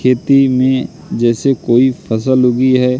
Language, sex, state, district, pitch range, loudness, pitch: Hindi, male, Madhya Pradesh, Katni, 125-130 Hz, -13 LUFS, 130 Hz